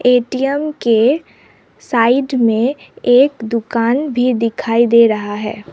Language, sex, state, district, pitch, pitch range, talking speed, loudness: Hindi, female, Assam, Sonitpur, 240 Hz, 230-265 Hz, 115 wpm, -15 LUFS